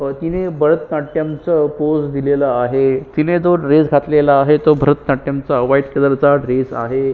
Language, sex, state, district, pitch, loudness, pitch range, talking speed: Marathi, male, Maharashtra, Sindhudurg, 145 Hz, -15 LUFS, 140-155 Hz, 160 wpm